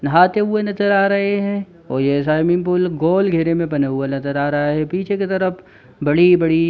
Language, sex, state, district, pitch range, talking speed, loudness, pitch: Hindi, male, Chhattisgarh, Bilaspur, 150-195 Hz, 215 wpm, -17 LUFS, 175 Hz